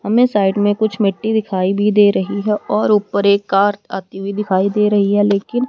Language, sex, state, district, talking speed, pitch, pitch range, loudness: Hindi, female, Haryana, Rohtak, 220 wpm, 205 Hz, 195-210 Hz, -16 LUFS